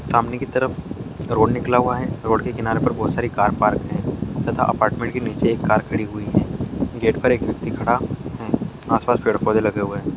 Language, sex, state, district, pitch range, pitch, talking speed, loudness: Hindi, male, Bihar, Darbhanga, 105-125 Hz, 110 Hz, 240 wpm, -21 LUFS